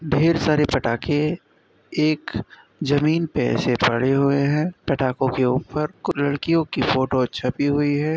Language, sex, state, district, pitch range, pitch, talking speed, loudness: Hindi, male, Uttar Pradesh, Jyotiba Phule Nagar, 130-155 Hz, 145 Hz, 145 wpm, -21 LUFS